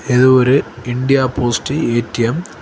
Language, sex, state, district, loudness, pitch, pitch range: Tamil, male, Tamil Nadu, Kanyakumari, -15 LUFS, 125 Hz, 120-130 Hz